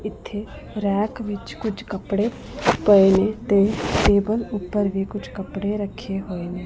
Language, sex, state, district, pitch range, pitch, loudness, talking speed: Punjabi, female, Punjab, Pathankot, 195-210 Hz, 205 Hz, -22 LUFS, 145 wpm